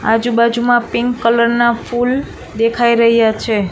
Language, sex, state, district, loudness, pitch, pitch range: Gujarati, female, Gujarat, Gandhinagar, -14 LUFS, 235 Hz, 230-240 Hz